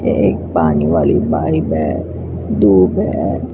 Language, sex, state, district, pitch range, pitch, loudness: Hindi, female, Punjab, Pathankot, 80-90 Hz, 80 Hz, -15 LUFS